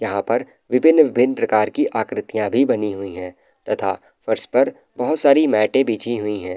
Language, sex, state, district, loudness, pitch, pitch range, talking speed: Hindi, male, Uttar Pradesh, Muzaffarnagar, -19 LUFS, 110 Hz, 105-135 Hz, 175 wpm